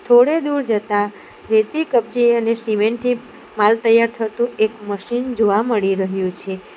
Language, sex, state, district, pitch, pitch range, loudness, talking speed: Gujarati, female, Gujarat, Valsad, 225 Hz, 210-240 Hz, -18 LUFS, 150 wpm